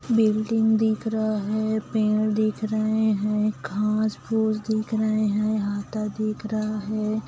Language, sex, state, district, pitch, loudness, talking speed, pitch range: Hindi, female, Chhattisgarh, Kabirdham, 215 Hz, -24 LUFS, 140 wpm, 215-220 Hz